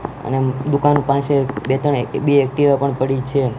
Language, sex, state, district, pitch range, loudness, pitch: Gujarati, male, Gujarat, Gandhinagar, 130-145 Hz, -17 LUFS, 140 Hz